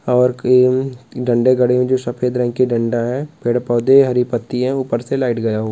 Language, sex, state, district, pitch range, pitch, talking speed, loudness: Hindi, male, West Bengal, Dakshin Dinajpur, 120-130 Hz, 125 Hz, 220 wpm, -16 LUFS